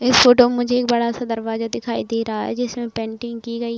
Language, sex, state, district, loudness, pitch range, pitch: Hindi, female, Uttar Pradesh, Budaun, -19 LUFS, 230-245 Hz, 235 Hz